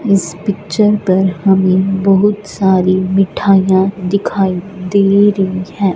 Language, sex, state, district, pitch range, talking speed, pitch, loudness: Hindi, female, Punjab, Fazilka, 185-200 Hz, 110 wpm, 195 Hz, -13 LUFS